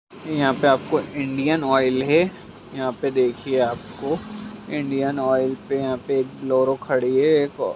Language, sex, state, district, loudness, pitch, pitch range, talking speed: Hindi, male, Jharkhand, Jamtara, -22 LUFS, 135 Hz, 130-150 Hz, 140 wpm